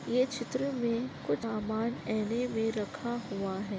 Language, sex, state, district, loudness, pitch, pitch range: Hindi, female, Maharashtra, Nagpur, -33 LUFS, 230 Hz, 215-240 Hz